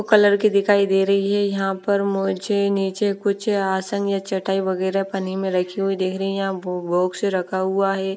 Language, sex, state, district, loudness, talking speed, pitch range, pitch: Hindi, female, Odisha, Nuapada, -21 LUFS, 200 wpm, 190-200 Hz, 195 Hz